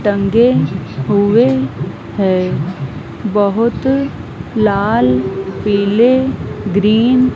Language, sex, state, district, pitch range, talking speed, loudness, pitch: Hindi, female, Madhya Pradesh, Dhar, 185-230 Hz, 65 wpm, -14 LUFS, 205 Hz